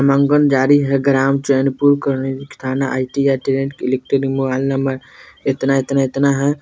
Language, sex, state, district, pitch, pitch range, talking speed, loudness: Bajjika, male, Bihar, Vaishali, 135 Hz, 135-140 Hz, 120 wpm, -17 LUFS